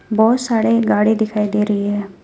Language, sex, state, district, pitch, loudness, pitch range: Hindi, female, West Bengal, Alipurduar, 215 Hz, -16 LUFS, 205-225 Hz